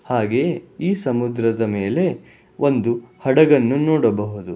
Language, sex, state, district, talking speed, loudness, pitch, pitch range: Kannada, male, Karnataka, Bangalore, 90 wpm, -19 LUFS, 120 Hz, 115-150 Hz